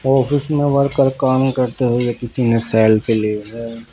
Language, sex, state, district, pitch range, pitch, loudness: Hindi, male, Bihar, Patna, 115-135 Hz, 125 Hz, -17 LUFS